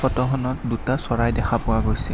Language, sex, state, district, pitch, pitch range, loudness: Assamese, male, Assam, Kamrup Metropolitan, 120 Hz, 115-130 Hz, -20 LUFS